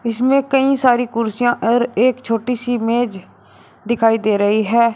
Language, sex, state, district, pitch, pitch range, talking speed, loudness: Hindi, male, Uttar Pradesh, Shamli, 235 Hz, 225-245 Hz, 155 wpm, -17 LUFS